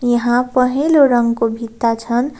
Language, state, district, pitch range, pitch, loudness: Nepali, West Bengal, Darjeeling, 235-255 Hz, 240 Hz, -15 LUFS